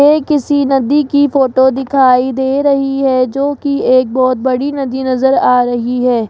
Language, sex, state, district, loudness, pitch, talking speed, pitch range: Hindi, female, Rajasthan, Jaipur, -12 LUFS, 265 Hz, 180 wpm, 255-280 Hz